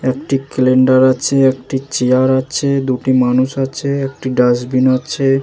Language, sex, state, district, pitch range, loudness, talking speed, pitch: Bengali, male, West Bengal, Jalpaiguri, 130-135 Hz, -14 LUFS, 135 wpm, 130 Hz